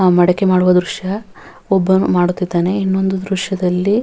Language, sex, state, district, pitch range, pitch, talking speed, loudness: Kannada, female, Karnataka, Dharwad, 180-190 Hz, 185 Hz, 120 wpm, -15 LUFS